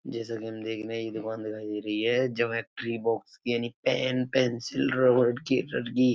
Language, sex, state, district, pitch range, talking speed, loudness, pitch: Hindi, male, Uttar Pradesh, Etah, 110-125 Hz, 205 wpm, -28 LUFS, 120 Hz